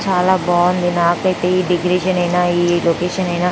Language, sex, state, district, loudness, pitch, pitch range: Telugu, female, Andhra Pradesh, Anantapur, -16 LUFS, 180 Hz, 175-180 Hz